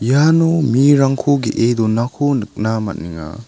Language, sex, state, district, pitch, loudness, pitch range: Garo, male, Meghalaya, South Garo Hills, 120 Hz, -15 LUFS, 110-145 Hz